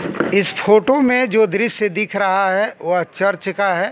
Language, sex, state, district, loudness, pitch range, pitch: Hindi, male, Bihar, Kaimur, -17 LUFS, 195-220 Hz, 200 Hz